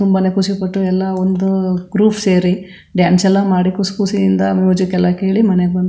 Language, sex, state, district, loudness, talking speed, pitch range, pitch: Kannada, female, Karnataka, Chamarajanagar, -15 LUFS, 175 wpm, 180-195 Hz, 185 Hz